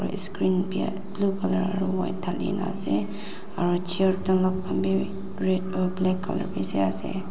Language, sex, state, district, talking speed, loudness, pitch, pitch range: Nagamese, female, Nagaland, Dimapur, 130 wpm, -24 LUFS, 185 Hz, 120-190 Hz